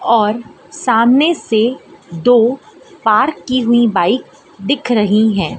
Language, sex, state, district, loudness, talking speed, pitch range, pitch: Hindi, female, Madhya Pradesh, Dhar, -14 LUFS, 120 wpm, 215-250 Hz, 235 Hz